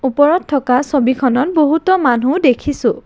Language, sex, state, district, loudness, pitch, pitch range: Assamese, female, Assam, Kamrup Metropolitan, -14 LUFS, 275 Hz, 255-300 Hz